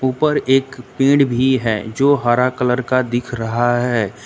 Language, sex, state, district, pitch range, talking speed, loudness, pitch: Hindi, male, Uttar Pradesh, Lucknow, 120-135 Hz, 170 wpm, -17 LUFS, 125 Hz